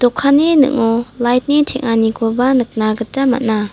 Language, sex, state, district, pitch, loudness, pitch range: Garo, female, Meghalaya, South Garo Hills, 245 Hz, -14 LUFS, 225-270 Hz